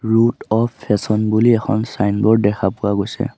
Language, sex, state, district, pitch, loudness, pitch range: Assamese, male, Assam, Sonitpur, 110 Hz, -17 LUFS, 105-115 Hz